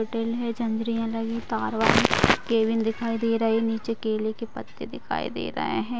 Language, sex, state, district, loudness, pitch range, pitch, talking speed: Hindi, female, Bihar, Vaishali, -25 LUFS, 225-230 Hz, 225 Hz, 160 wpm